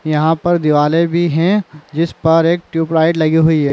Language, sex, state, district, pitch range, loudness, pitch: Chhattisgarhi, male, Chhattisgarh, Raigarh, 155-170 Hz, -14 LUFS, 160 Hz